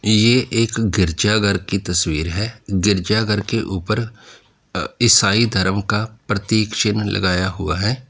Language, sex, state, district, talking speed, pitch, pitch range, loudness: Hindi, male, Uttar Pradesh, Lalitpur, 135 wpm, 105 Hz, 95-110 Hz, -18 LUFS